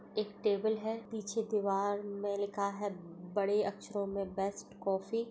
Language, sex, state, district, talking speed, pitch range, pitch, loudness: Hindi, female, Chhattisgarh, Jashpur, 160 wpm, 200-215 Hz, 205 Hz, -36 LUFS